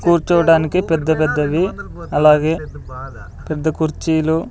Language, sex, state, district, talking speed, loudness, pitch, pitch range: Telugu, male, Andhra Pradesh, Sri Satya Sai, 80 wpm, -16 LUFS, 160 Hz, 155-170 Hz